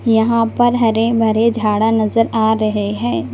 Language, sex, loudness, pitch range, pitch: Hindi, female, -15 LUFS, 215-230 Hz, 225 Hz